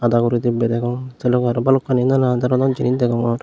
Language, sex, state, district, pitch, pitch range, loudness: Chakma, male, Tripura, Unakoti, 125 Hz, 120-130 Hz, -18 LUFS